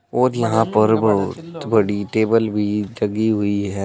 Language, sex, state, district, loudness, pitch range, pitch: Hindi, male, Uttar Pradesh, Saharanpur, -19 LUFS, 100-115 Hz, 110 Hz